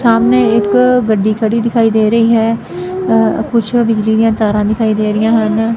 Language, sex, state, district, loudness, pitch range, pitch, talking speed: Punjabi, female, Punjab, Fazilka, -12 LUFS, 215-230 Hz, 220 Hz, 165 wpm